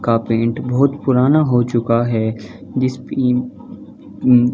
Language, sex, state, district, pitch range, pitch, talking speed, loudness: Hindi, male, Chhattisgarh, Balrampur, 115-130 Hz, 125 Hz, 105 wpm, -17 LUFS